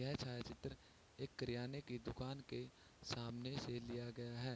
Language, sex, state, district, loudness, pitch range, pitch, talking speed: Hindi, male, Bihar, Sitamarhi, -49 LUFS, 120-130 Hz, 120 Hz, 160 wpm